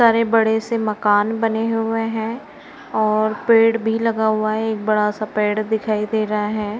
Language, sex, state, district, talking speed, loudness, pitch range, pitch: Hindi, female, Uttar Pradesh, Varanasi, 185 wpm, -19 LUFS, 215-225 Hz, 220 Hz